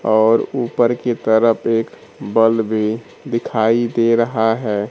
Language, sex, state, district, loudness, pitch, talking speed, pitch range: Hindi, male, Bihar, Kaimur, -17 LUFS, 115 Hz, 135 wpm, 110-115 Hz